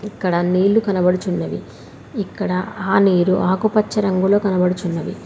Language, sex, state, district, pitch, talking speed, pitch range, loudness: Telugu, female, Telangana, Hyderabad, 190 Hz, 105 wpm, 180-205 Hz, -18 LUFS